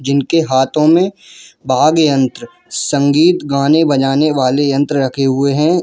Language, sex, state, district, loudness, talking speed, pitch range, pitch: Hindi, male, Jharkhand, Jamtara, -13 LUFS, 135 wpm, 140-165 Hz, 145 Hz